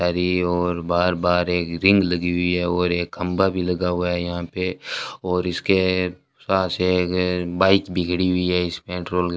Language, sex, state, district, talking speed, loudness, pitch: Hindi, male, Rajasthan, Bikaner, 185 wpm, -21 LUFS, 90 Hz